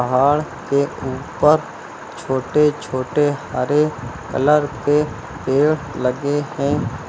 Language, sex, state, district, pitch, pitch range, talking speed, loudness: Hindi, male, Uttar Pradesh, Lucknow, 145 Hz, 130-150 Hz, 95 wpm, -19 LUFS